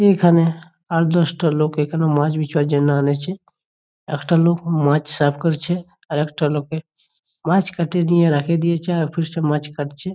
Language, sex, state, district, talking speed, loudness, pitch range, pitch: Bengali, male, West Bengal, Jhargram, 165 wpm, -19 LUFS, 150-170 Hz, 160 Hz